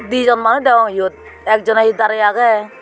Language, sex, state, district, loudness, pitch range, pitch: Chakma, female, Tripura, Unakoti, -14 LUFS, 215-230 Hz, 220 Hz